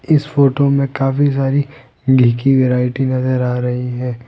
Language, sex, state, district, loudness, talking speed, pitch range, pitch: Hindi, male, Rajasthan, Jaipur, -15 LUFS, 170 wpm, 125-140 Hz, 130 Hz